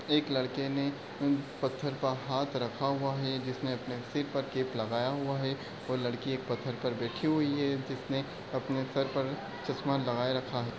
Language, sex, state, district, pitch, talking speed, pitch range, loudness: Hindi, male, Bihar, Darbhanga, 135 Hz, 190 wpm, 130-140 Hz, -33 LUFS